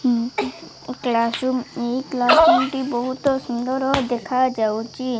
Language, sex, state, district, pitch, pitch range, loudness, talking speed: Odia, female, Odisha, Malkangiri, 255 Hz, 240-265 Hz, -21 LUFS, 90 wpm